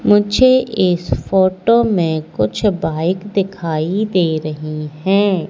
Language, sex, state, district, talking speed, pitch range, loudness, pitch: Hindi, female, Madhya Pradesh, Katni, 110 wpm, 155-205 Hz, -16 LUFS, 185 Hz